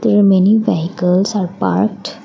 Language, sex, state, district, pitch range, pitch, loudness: English, female, Assam, Kamrup Metropolitan, 185-215 Hz, 205 Hz, -14 LUFS